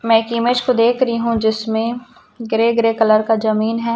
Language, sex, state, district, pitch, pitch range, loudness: Hindi, female, Chhattisgarh, Raipur, 230 Hz, 220-235 Hz, -16 LUFS